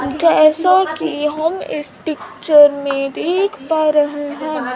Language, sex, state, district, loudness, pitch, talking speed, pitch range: Hindi, female, Bihar, Kaimur, -16 LUFS, 305 Hz, 125 wpm, 290-320 Hz